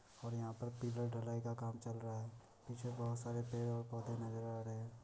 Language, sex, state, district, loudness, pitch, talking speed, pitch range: Hindi, male, Bihar, Muzaffarpur, -45 LUFS, 115 Hz, 240 wpm, 115-120 Hz